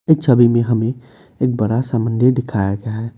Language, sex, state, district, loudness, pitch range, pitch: Hindi, male, Assam, Kamrup Metropolitan, -17 LUFS, 115-125 Hz, 120 Hz